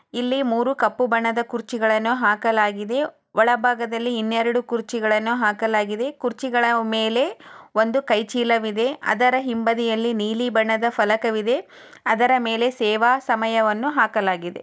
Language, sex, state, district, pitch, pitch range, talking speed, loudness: Kannada, female, Karnataka, Chamarajanagar, 230 Hz, 220-245 Hz, 105 wpm, -21 LUFS